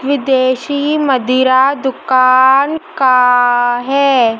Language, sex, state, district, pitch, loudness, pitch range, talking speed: Hindi, female, Madhya Pradesh, Dhar, 260 Hz, -12 LUFS, 255-280 Hz, 70 wpm